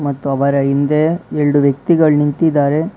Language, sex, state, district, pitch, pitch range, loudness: Kannada, male, Karnataka, Bangalore, 145 Hz, 140-155 Hz, -14 LUFS